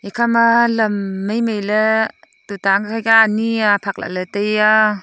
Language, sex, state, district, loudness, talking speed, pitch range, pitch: Wancho, female, Arunachal Pradesh, Longding, -16 LUFS, 130 wpm, 200-225 Hz, 215 Hz